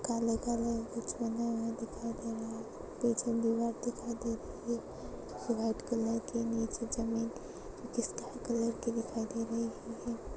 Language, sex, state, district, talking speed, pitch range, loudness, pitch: Hindi, female, Chhattisgarh, Balrampur, 145 wpm, 230-235 Hz, -36 LUFS, 230 Hz